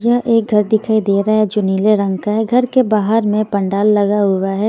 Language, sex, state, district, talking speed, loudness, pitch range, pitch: Hindi, female, Haryana, Jhajjar, 255 wpm, -15 LUFS, 200-220 Hz, 210 Hz